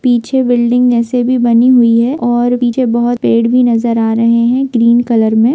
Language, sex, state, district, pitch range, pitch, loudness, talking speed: Hindi, female, Jharkhand, Sahebganj, 235-245 Hz, 240 Hz, -11 LUFS, 215 wpm